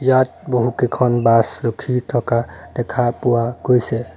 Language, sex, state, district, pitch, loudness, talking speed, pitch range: Assamese, male, Assam, Sonitpur, 120 Hz, -18 LUFS, 115 wpm, 115-125 Hz